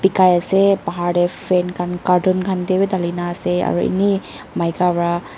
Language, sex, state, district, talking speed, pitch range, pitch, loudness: Nagamese, female, Nagaland, Dimapur, 180 wpm, 175-190 Hz, 180 Hz, -18 LUFS